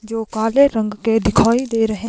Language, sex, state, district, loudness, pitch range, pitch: Hindi, female, Himachal Pradesh, Shimla, -17 LUFS, 220-230 Hz, 225 Hz